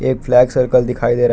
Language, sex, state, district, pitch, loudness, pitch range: Hindi, male, Jharkhand, Palamu, 125 Hz, -14 LUFS, 120-130 Hz